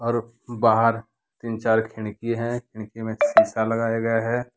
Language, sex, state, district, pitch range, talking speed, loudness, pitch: Hindi, male, Jharkhand, Deoghar, 110-120 Hz, 145 wpm, -23 LUFS, 115 Hz